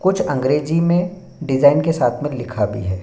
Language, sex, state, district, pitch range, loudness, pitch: Hindi, male, Bihar, Bhagalpur, 125-170 Hz, -18 LUFS, 145 Hz